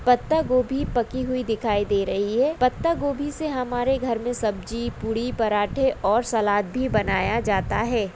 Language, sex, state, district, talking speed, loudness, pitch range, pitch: Hindi, female, Rajasthan, Nagaur, 175 wpm, -23 LUFS, 220-260 Hz, 245 Hz